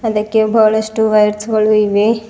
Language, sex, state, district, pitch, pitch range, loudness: Kannada, female, Karnataka, Bidar, 215 Hz, 210-220 Hz, -13 LUFS